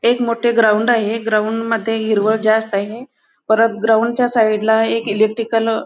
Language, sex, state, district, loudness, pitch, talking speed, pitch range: Marathi, female, Goa, North and South Goa, -16 LUFS, 225 Hz, 155 wpm, 220-230 Hz